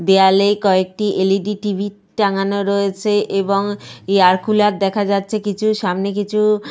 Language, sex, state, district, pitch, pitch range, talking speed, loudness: Bengali, female, Jharkhand, Sahebganj, 200 Hz, 195-210 Hz, 135 wpm, -17 LUFS